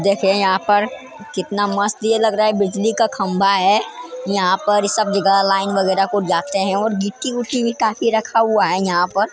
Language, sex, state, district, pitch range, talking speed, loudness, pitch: Hindi, female, Bihar, Jamui, 195-220 Hz, 200 wpm, -17 LUFS, 200 Hz